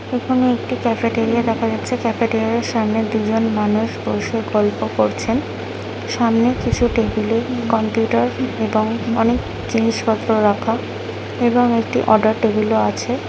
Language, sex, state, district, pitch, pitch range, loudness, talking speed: Bengali, female, West Bengal, Kolkata, 225 Hz, 215-230 Hz, -18 LUFS, 115 wpm